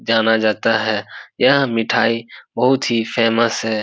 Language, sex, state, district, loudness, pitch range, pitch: Hindi, male, Bihar, Supaul, -17 LUFS, 110-115 Hz, 115 Hz